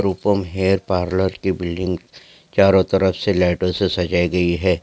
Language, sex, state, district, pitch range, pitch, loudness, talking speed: Hindi, male, Maharashtra, Solapur, 90-95 Hz, 95 Hz, -19 LUFS, 160 wpm